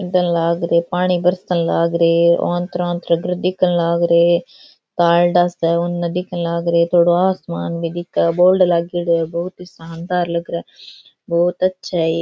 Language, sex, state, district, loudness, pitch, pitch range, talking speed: Rajasthani, female, Rajasthan, Churu, -17 LUFS, 170 Hz, 170-180 Hz, 165 wpm